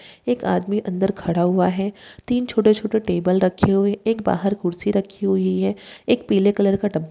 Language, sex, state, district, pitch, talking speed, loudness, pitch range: Hindi, female, Bihar, Jahanabad, 195 Hz, 200 wpm, -20 LUFS, 185-210 Hz